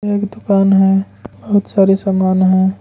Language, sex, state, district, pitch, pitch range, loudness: Hindi, male, Jharkhand, Ranchi, 195 Hz, 190-205 Hz, -14 LUFS